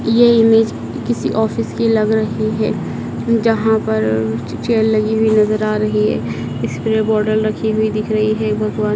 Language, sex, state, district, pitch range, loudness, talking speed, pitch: Hindi, male, Madhya Pradesh, Dhar, 210-220 Hz, -16 LUFS, 165 wpm, 215 Hz